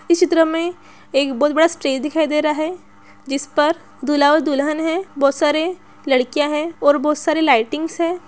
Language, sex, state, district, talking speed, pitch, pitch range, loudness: Hindi, female, Bihar, Araria, 190 wpm, 305 Hz, 285-330 Hz, -18 LUFS